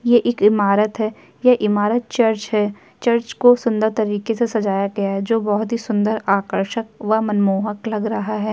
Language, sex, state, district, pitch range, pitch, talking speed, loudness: Hindi, female, Uttar Pradesh, Jyotiba Phule Nagar, 205-230 Hz, 215 Hz, 185 wpm, -19 LUFS